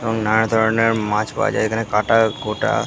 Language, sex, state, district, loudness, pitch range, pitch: Bengali, male, West Bengal, Jalpaiguri, -18 LUFS, 105-115 Hz, 110 Hz